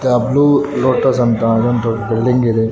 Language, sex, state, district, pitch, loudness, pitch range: Kannada, male, Karnataka, Raichur, 120 Hz, -14 LUFS, 115-125 Hz